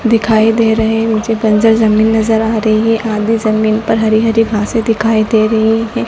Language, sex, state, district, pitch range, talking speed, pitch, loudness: Hindi, female, Madhya Pradesh, Dhar, 220-225 Hz, 205 wpm, 220 Hz, -12 LUFS